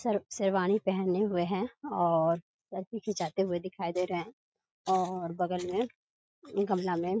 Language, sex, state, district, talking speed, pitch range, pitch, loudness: Hindi, female, Bihar, East Champaran, 160 wpm, 175-200 Hz, 185 Hz, -32 LUFS